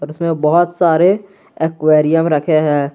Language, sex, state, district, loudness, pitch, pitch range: Hindi, male, Jharkhand, Garhwa, -14 LUFS, 160 Hz, 150-170 Hz